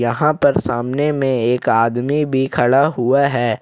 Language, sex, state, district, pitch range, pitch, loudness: Hindi, male, Jharkhand, Ranchi, 120-140 Hz, 130 Hz, -16 LUFS